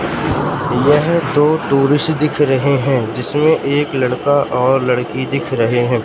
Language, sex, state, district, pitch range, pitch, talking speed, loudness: Hindi, male, Madhya Pradesh, Katni, 125-145 Hz, 140 Hz, 140 wpm, -15 LUFS